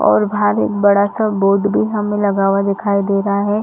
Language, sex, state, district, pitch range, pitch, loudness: Hindi, female, Chhattisgarh, Rajnandgaon, 195-205 Hz, 200 Hz, -15 LUFS